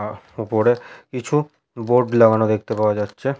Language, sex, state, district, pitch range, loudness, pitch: Bengali, male, West Bengal, Paschim Medinipur, 110-130 Hz, -19 LUFS, 115 Hz